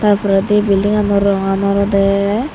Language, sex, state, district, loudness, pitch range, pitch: Chakma, female, Tripura, Unakoti, -14 LUFS, 195-205 Hz, 200 Hz